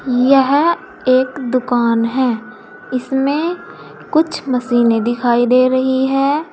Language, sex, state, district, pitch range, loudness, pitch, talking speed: Hindi, female, Uttar Pradesh, Saharanpur, 245-280 Hz, -15 LUFS, 255 Hz, 100 wpm